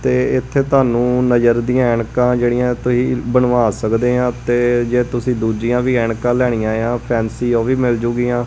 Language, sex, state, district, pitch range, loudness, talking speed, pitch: Punjabi, male, Punjab, Kapurthala, 120-125 Hz, -16 LUFS, 175 wpm, 120 Hz